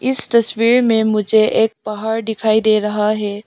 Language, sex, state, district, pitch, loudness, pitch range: Hindi, female, Arunachal Pradesh, Lower Dibang Valley, 220 Hz, -15 LUFS, 215-225 Hz